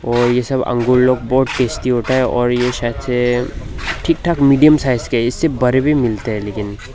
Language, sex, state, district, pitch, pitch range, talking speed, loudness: Hindi, male, Nagaland, Dimapur, 125 Hz, 120-130 Hz, 205 wpm, -16 LUFS